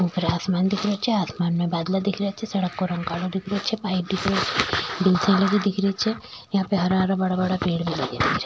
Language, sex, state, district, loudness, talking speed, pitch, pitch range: Rajasthani, female, Rajasthan, Nagaur, -23 LUFS, 155 wpm, 190 Hz, 180-200 Hz